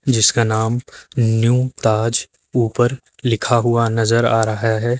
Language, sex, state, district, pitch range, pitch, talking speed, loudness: Hindi, male, Uttar Pradesh, Lucknow, 115-120 Hz, 115 Hz, 130 wpm, -17 LUFS